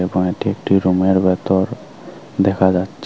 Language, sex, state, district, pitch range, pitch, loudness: Bengali, male, Tripura, Unakoti, 90-95 Hz, 95 Hz, -17 LUFS